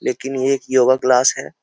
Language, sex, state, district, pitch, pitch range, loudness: Hindi, male, Uttar Pradesh, Jyotiba Phule Nagar, 130 Hz, 130-135 Hz, -16 LUFS